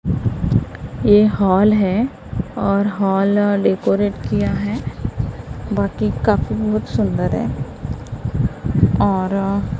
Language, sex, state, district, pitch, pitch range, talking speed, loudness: Hindi, female, Maharashtra, Gondia, 195 Hz, 125-205 Hz, 85 wpm, -18 LUFS